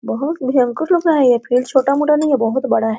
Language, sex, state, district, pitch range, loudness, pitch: Hindi, female, Bihar, Araria, 245-300 Hz, -16 LUFS, 265 Hz